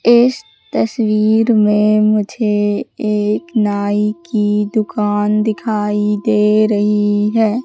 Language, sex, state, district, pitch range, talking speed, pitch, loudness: Hindi, female, Madhya Pradesh, Katni, 210-220 Hz, 95 wpm, 210 Hz, -15 LUFS